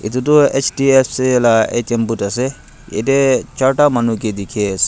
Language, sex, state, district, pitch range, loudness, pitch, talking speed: Nagamese, male, Nagaland, Dimapur, 110-135 Hz, -15 LUFS, 125 Hz, 160 wpm